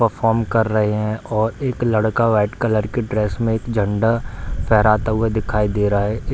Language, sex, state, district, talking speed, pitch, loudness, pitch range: Hindi, male, Bihar, Darbhanga, 190 wpm, 110 Hz, -19 LUFS, 105-115 Hz